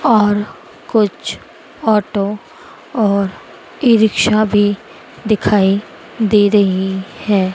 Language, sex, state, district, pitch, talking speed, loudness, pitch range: Hindi, female, Madhya Pradesh, Dhar, 210 Hz, 90 wpm, -15 LUFS, 200-220 Hz